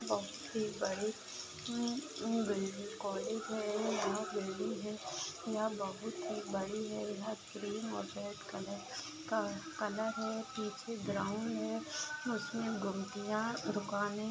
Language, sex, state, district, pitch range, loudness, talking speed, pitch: Hindi, female, Maharashtra, Aurangabad, 205-225 Hz, -39 LUFS, 130 wpm, 210 Hz